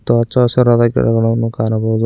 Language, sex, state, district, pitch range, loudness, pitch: Kannada, male, Karnataka, Koppal, 115-120 Hz, -14 LUFS, 115 Hz